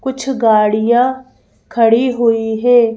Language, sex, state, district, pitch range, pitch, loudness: Hindi, female, Madhya Pradesh, Bhopal, 225-255 Hz, 240 Hz, -13 LUFS